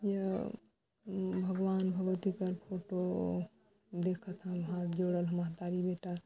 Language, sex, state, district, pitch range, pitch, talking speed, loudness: Chhattisgarhi, female, Chhattisgarh, Balrampur, 175-190 Hz, 180 Hz, 105 wpm, -37 LUFS